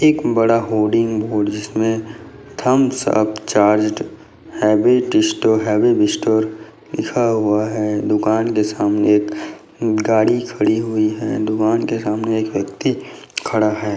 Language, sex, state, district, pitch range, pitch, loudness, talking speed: Hindi, male, Bihar, Bhagalpur, 105-115 Hz, 110 Hz, -17 LUFS, 135 wpm